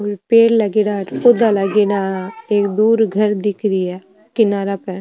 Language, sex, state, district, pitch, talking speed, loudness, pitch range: Marwari, female, Rajasthan, Nagaur, 205 Hz, 155 wpm, -16 LUFS, 195-220 Hz